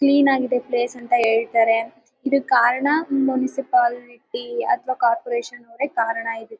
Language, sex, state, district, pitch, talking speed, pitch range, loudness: Kannada, female, Karnataka, Mysore, 245 Hz, 110 wpm, 230-275 Hz, -20 LUFS